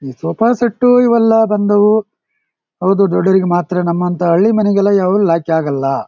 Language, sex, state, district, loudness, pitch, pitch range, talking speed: Kannada, male, Karnataka, Shimoga, -13 LUFS, 195 Hz, 175-215 Hz, 140 wpm